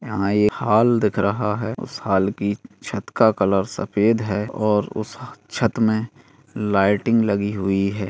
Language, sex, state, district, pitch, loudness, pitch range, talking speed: Hindi, male, Bihar, Bhagalpur, 105 Hz, -21 LUFS, 100-115 Hz, 165 wpm